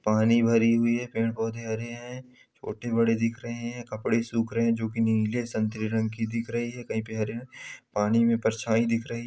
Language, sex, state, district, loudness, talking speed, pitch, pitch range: Hindi, male, Bihar, Samastipur, -27 LUFS, 225 wpm, 115 Hz, 110-115 Hz